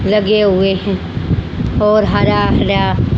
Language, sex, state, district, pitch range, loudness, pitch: Hindi, female, Haryana, Jhajjar, 195-210 Hz, -14 LUFS, 205 Hz